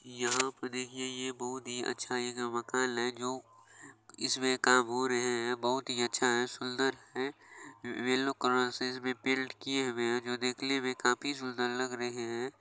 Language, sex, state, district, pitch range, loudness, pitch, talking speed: Maithili, male, Bihar, Supaul, 120-130 Hz, -33 LUFS, 125 Hz, 175 wpm